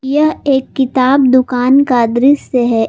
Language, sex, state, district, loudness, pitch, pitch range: Hindi, female, Jharkhand, Palamu, -12 LUFS, 260 Hz, 245-275 Hz